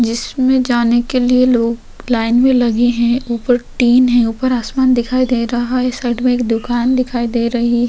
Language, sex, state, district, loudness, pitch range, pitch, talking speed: Hindi, female, Uttar Pradesh, Hamirpur, -14 LUFS, 235-255 Hz, 240 Hz, 200 wpm